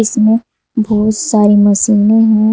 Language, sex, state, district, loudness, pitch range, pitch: Hindi, female, Uttar Pradesh, Saharanpur, -11 LUFS, 210-220 Hz, 215 Hz